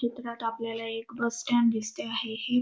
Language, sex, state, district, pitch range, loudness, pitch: Marathi, female, Maharashtra, Dhule, 225-235 Hz, -30 LUFS, 230 Hz